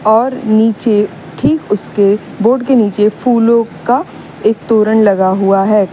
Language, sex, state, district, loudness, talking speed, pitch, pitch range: Hindi, female, Uttar Pradesh, Lalitpur, -12 LUFS, 140 wpm, 215 Hz, 205-235 Hz